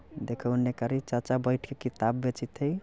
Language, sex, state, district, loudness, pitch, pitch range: Bajjika, male, Bihar, Vaishali, -30 LUFS, 125 Hz, 120-135 Hz